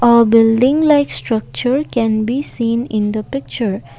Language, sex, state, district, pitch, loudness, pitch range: English, female, Assam, Kamrup Metropolitan, 235 Hz, -15 LUFS, 220-260 Hz